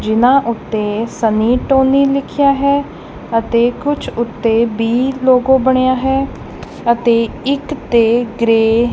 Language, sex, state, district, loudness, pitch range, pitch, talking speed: Punjabi, female, Punjab, Kapurthala, -14 LUFS, 230-265 Hz, 240 Hz, 105 wpm